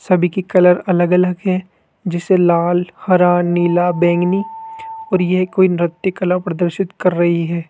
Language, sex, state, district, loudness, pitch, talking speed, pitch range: Hindi, male, Rajasthan, Jaipur, -16 LUFS, 180 Hz, 155 wpm, 175-185 Hz